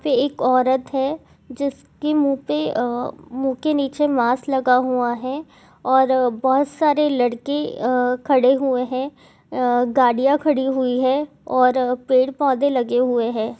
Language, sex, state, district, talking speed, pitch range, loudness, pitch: Hindi, female, Jharkhand, Jamtara, 155 wpm, 250-280 Hz, -19 LUFS, 260 Hz